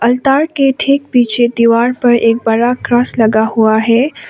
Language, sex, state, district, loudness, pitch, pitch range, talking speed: Hindi, female, Sikkim, Gangtok, -12 LUFS, 240 Hz, 230-255 Hz, 170 wpm